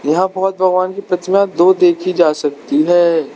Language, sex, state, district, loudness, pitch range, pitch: Hindi, male, Arunachal Pradesh, Lower Dibang Valley, -14 LUFS, 175-190 Hz, 185 Hz